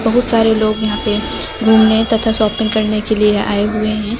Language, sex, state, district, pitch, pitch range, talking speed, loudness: Hindi, female, Uttar Pradesh, Lucknow, 220 Hz, 215-225 Hz, 200 wpm, -14 LUFS